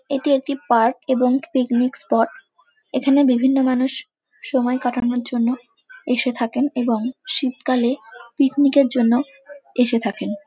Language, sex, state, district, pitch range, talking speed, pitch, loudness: Bengali, female, West Bengal, Kolkata, 245-280 Hz, 120 wpm, 260 Hz, -20 LUFS